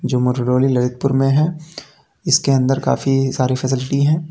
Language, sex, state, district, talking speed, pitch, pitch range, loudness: Hindi, male, Uttar Pradesh, Lalitpur, 155 wpm, 135 Hz, 130-145 Hz, -17 LUFS